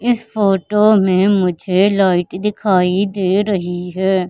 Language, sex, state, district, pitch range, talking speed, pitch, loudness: Hindi, female, Madhya Pradesh, Katni, 185-205 Hz, 125 wpm, 195 Hz, -15 LUFS